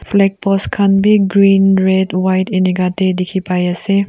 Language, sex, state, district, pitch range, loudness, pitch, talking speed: Nagamese, female, Nagaland, Kohima, 185-195 Hz, -13 LUFS, 190 Hz, 175 wpm